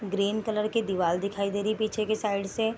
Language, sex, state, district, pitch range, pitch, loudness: Hindi, female, Bihar, Darbhanga, 200-215 Hz, 210 Hz, -28 LUFS